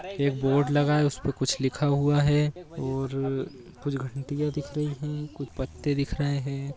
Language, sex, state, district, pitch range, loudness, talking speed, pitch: Hindi, male, Bihar, Bhagalpur, 135-150 Hz, -27 LUFS, 195 wpm, 140 Hz